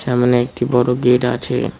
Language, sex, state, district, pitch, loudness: Bengali, male, West Bengal, Cooch Behar, 125 Hz, -16 LUFS